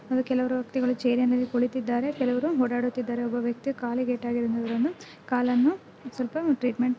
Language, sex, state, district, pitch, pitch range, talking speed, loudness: Kannada, female, Karnataka, Dharwad, 250 Hz, 245-255 Hz, 135 wpm, -27 LUFS